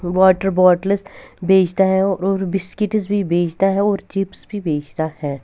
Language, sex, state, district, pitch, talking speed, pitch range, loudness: Hindi, female, Bihar, West Champaran, 190 Hz, 155 wpm, 175-195 Hz, -18 LUFS